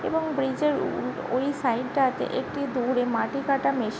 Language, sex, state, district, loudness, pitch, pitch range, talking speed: Bengali, female, West Bengal, Jhargram, -26 LUFS, 265 Hz, 245-280 Hz, 210 wpm